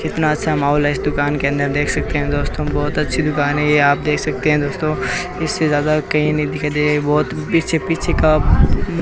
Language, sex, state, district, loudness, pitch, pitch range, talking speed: Hindi, male, Rajasthan, Bikaner, -17 LUFS, 150 Hz, 145-150 Hz, 240 wpm